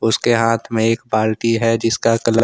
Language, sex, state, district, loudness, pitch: Hindi, male, Jharkhand, Ranchi, -17 LUFS, 115 Hz